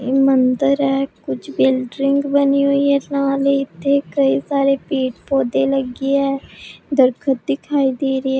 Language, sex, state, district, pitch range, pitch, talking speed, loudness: Punjabi, female, Punjab, Pathankot, 265-280 Hz, 275 Hz, 145 wpm, -18 LUFS